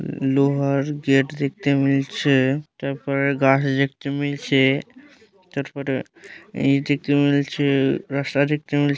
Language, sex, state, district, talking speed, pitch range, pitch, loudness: Bengali, male, West Bengal, Malda, 105 wpm, 135-145 Hz, 140 Hz, -21 LUFS